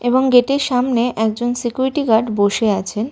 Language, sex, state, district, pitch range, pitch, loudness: Bengali, female, West Bengal, Malda, 220-255 Hz, 240 Hz, -17 LUFS